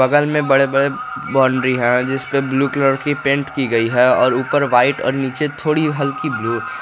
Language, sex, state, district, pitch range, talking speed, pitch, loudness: Hindi, male, Jharkhand, Garhwa, 130-145 Hz, 210 wpm, 135 Hz, -17 LUFS